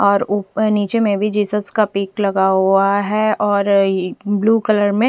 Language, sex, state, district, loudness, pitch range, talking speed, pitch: Hindi, female, Punjab, Fazilka, -16 LUFS, 200-215 Hz, 210 wpm, 205 Hz